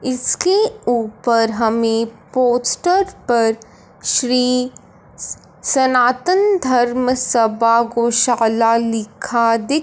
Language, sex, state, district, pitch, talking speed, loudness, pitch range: Hindi, female, Punjab, Fazilka, 245 Hz, 65 wpm, -16 LUFS, 230-255 Hz